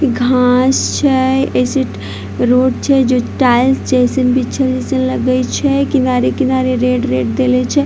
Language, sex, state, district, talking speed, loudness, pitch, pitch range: Maithili, female, Bihar, Vaishali, 135 wpm, -13 LUFS, 255 Hz, 250-265 Hz